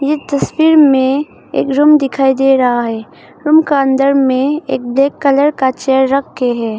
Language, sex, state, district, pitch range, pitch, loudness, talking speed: Hindi, female, Arunachal Pradesh, Longding, 260-290 Hz, 275 Hz, -12 LUFS, 175 wpm